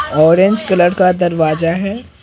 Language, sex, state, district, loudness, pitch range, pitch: Hindi, male, Bihar, Patna, -13 LUFS, 165-190 Hz, 175 Hz